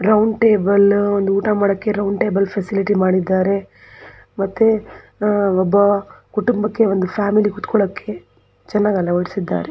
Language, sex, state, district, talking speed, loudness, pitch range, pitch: Kannada, female, Karnataka, Belgaum, 110 wpm, -17 LUFS, 195-210 Hz, 200 Hz